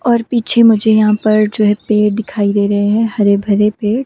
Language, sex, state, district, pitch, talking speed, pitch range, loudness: Hindi, female, Himachal Pradesh, Shimla, 215 Hz, 220 wpm, 205-225 Hz, -13 LUFS